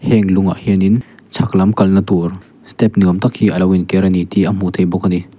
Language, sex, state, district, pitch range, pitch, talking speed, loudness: Mizo, male, Mizoram, Aizawl, 90-105 Hz, 95 Hz, 265 wpm, -14 LUFS